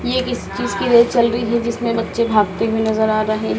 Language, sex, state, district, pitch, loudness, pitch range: Hindi, female, Madhya Pradesh, Dhar, 230 Hz, -17 LUFS, 220-235 Hz